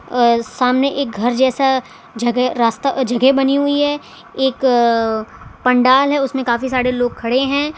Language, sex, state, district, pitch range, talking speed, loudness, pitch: Hindi, female, Gujarat, Valsad, 235-270 Hz, 160 wpm, -16 LUFS, 255 Hz